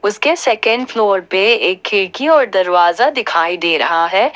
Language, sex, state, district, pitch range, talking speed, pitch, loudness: Hindi, female, Jharkhand, Ranchi, 175-265 Hz, 165 wpm, 205 Hz, -14 LUFS